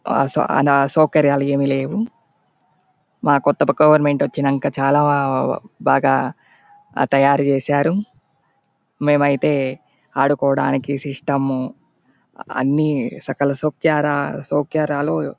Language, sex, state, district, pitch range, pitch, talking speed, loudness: Telugu, male, Andhra Pradesh, Anantapur, 140-150 Hz, 145 Hz, 80 wpm, -18 LUFS